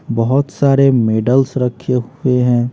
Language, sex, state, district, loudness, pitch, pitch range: Hindi, female, Bihar, West Champaran, -14 LUFS, 125 Hz, 120-135 Hz